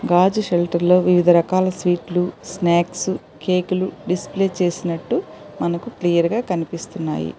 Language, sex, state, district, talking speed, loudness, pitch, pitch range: Telugu, female, Telangana, Hyderabad, 115 wpm, -20 LUFS, 180 Hz, 170-185 Hz